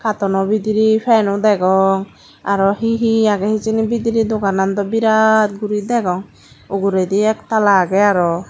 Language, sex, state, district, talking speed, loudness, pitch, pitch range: Chakma, female, Tripura, Dhalai, 140 wpm, -16 LUFS, 210 Hz, 195-220 Hz